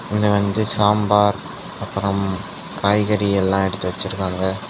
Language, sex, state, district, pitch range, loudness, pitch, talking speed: Tamil, male, Tamil Nadu, Kanyakumari, 95-105 Hz, -19 LUFS, 100 Hz, 100 wpm